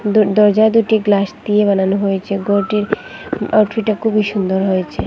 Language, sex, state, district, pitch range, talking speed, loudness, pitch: Bengali, female, Assam, Hailakandi, 195-215 Hz, 140 wpm, -15 LUFS, 205 Hz